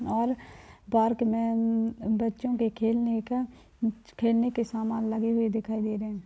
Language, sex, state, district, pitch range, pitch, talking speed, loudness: Hindi, female, Chhattisgarh, Balrampur, 220-230 Hz, 225 Hz, 170 wpm, -28 LUFS